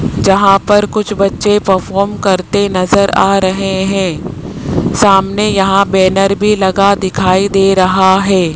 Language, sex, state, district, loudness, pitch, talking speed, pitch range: Hindi, male, Rajasthan, Jaipur, -11 LUFS, 195 Hz, 135 wpm, 190-200 Hz